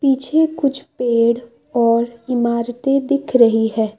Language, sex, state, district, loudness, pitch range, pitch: Hindi, female, Assam, Kamrup Metropolitan, -17 LUFS, 235-275 Hz, 240 Hz